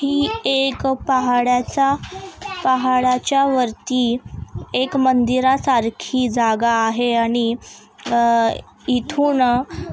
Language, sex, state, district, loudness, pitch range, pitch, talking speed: Marathi, female, Maharashtra, Aurangabad, -18 LUFS, 240-275 Hz, 255 Hz, 80 wpm